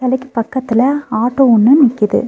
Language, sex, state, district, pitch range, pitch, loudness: Tamil, female, Tamil Nadu, Nilgiris, 230-265 Hz, 255 Hz, -13 LUFS